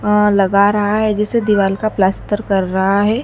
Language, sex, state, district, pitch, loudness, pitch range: Hindi, female, Madhya Pradesh, Dhar, 205 Hz, -15 LUFS, 195-210 Hz